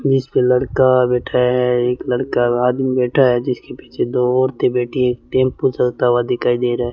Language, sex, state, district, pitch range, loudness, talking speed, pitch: Hindi, male, Rajasthan, Bikaner, 125-130 Hz, -17 LUFS, 190 wpm, 125 Hz